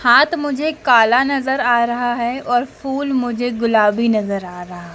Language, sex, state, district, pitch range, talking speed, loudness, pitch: Hindi, female, Madhya Pradesh, Dhar, 230-270 Hz, 180 wpm, -17 LUFS, 240 Hz